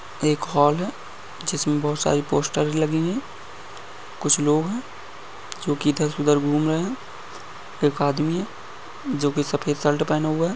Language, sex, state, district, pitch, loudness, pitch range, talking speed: Hindi, male, Bihar, Bhagalpur, 150 Hz, -23 LUFS, 145-155 Hz, 180 wpm